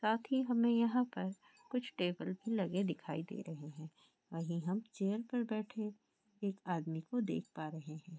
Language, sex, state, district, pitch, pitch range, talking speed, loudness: Hindi, female, Rajasthan, Churu, 195 Hz, 165-225 Hz, 185 wpm, -39 LUFS